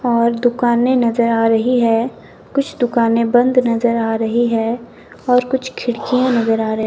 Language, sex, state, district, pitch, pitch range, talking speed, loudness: Hindi, male, Himachal Pradesh, Shimla, 235 Hz, 230-250 Hz, 175 wpm, -16 LUFS